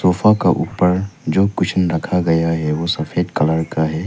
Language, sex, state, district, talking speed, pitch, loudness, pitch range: Hindi, male, Arunachal Pradesh, Papum Pare, 190 wpm, 85 Hz, -17 LUFS, 80-90 Hz